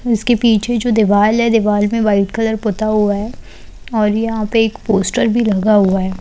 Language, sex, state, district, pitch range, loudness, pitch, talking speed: Hindi, female, Bihar, Saran, 205-225 Hz, -15 LUFS, 215 Hz, 200 wpm